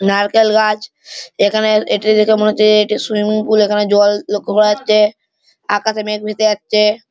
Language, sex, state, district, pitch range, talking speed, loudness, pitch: Bengali, male, West Bengal, Malda, 210-215 Hz, 160 wpm, -14 LUFS, 215 Hz